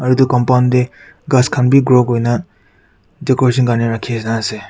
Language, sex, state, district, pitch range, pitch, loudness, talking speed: Nagamese, male, Nagaland, Kohima, 115-130 Hz, 125 Hz, -14 LUFS, 180 wpm